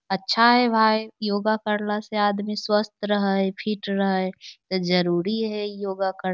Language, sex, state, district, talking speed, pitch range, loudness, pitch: Magahi, female, Bihar, Lakhisarai, 180 wpm, 195-215 Hz, -23 LUFS, 205 Hz